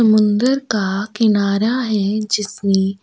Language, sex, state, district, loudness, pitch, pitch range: Hindi, female, Chhattisgarh, Sukma, -17 LUFS, 210 Hz, 200-220 Hz